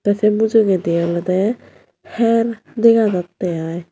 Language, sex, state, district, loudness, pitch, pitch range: Chakma, female, Tripura, Unakoti, -17 LUFS, 205 Hz, 175-225 Hz